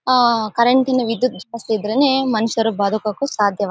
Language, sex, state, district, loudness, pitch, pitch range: Kannada, female, Karnataka, Bellary, -18 LUFS, 230 Hz, 215-255 Hz